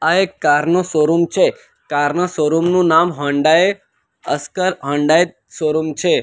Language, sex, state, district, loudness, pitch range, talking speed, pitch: Gujarati, male, Gujarat, Valsad, -16 LUFS, 155-185 Hz, 145 wpm, 170 Hz